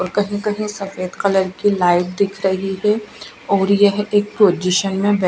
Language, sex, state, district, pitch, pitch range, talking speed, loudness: Hindi, female, Bihar, West Champaran, 200 Hz, 190-205 Hz, 180 wpm, -18 LUFS